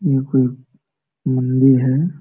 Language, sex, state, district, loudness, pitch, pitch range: Hindi, male, Bihar, Jamui, -17 LUFS, 130 Hz, 130-135 Hz